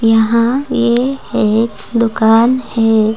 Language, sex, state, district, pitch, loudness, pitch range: Hindi, female, Rajasthan, Churu, 230 Hz, -13 LUFS, 225-240 Hz